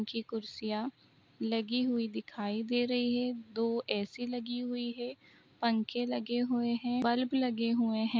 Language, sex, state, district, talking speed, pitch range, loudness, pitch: Hindi, female, Uttar Pradesh, Etah, 155 wpm, 225-245 Hz, -34 LUFS, 235 Hz